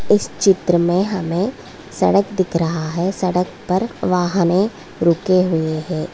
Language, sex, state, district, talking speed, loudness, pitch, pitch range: Hindi, female, Bihar, Muzaffarpur, 135 wpm, -18 LUFS, 180 Hz, 170-190 Hz